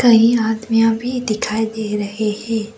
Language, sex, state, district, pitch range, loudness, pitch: Hindi, female, Assam, Kamrup Metropolitan, 215-225 Hz, -18 LUFS, 225 Hz